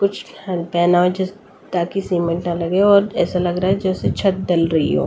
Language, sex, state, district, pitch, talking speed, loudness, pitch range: Hindi, female, Delhi, New Delhi, 180 Hz, 225 wpm, -18 LUFS, 175-195 Hz